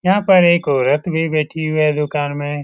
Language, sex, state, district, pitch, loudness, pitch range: Hindi, male, Bihar, Lakhisarai, 155 Hz, -16 LUFS, 145-170 Hz